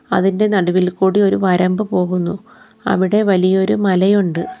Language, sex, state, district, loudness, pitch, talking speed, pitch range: Malayalam, female, Kerala, Kollam, -15 LUFS, 190 Hz, 115 wpm, 185-205 Hz